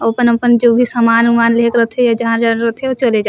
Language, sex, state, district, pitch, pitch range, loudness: Surgujia, female, Chhattisgarh, Sarguja, 235 Hz, 230-240 Hz, -12 LUFS